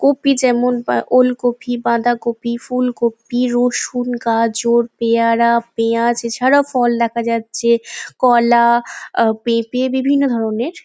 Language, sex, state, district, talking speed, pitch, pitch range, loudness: Bengali, female, West Bengal, Jalpaiguri, 105 wpm, 235 Hz, 235-250 Hz, -16 LUFS